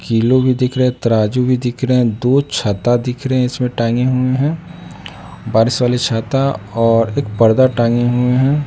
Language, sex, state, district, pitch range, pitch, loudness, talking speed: Hindi, male, Bihar, West Champaran, 115-130 Hz, 125 Hz, -15 LUFS, 180 wpm